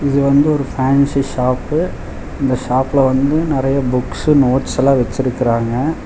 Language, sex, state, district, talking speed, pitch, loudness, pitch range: Tamil, male, Tamil Nadu, Chennai, 120 wpm, 135 Hz, -15 LUFS, 125-140 Hz